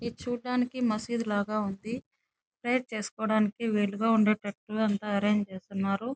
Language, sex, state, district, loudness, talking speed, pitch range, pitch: Telugu, female, Andhra Pradesh, Chittoor, -29 LUFS, 125 wpm, 205-235 Hz, 215 Hz